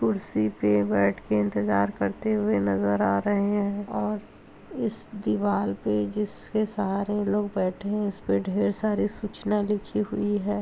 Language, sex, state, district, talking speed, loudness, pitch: Hindi, female, Uttar Pradesh, Hamirpur, 155 wpm, -26 LUFS, 200 Hz